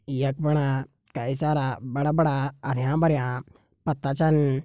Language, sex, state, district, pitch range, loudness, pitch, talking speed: Garhwali, male, Uttarakhand, Tehri Garhwal, 130-150 Hz, -25 LUFS, 140 Hz, 115 wpm